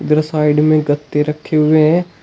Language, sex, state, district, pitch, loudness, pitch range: Hindi, male, Uttar Pradesh, Shamli, 155 Hz, -14 LUFS, 150-155 Hz